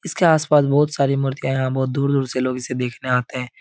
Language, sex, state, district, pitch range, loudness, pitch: Hindi, male, Uttar Pradesh, Etah, 130-145 Hz, -20 LUFS, 135 Hz